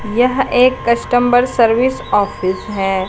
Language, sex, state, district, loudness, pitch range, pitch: Hindi, female, Bihar, Katihar, -14 LUFS, 205-250 Hz, 235 Hz